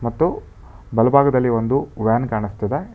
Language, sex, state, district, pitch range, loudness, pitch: Kannada, male, Karnataka, Bangalore, 105-140 Hz, -19 LUFS, 115 Hz